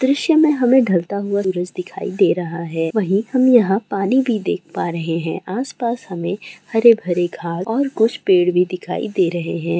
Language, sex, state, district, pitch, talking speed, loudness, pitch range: Hindi, female, West Bengal, Jalpaiguri, 195 Hz, 190 wpm, -18 LUFS, 175-235 Hz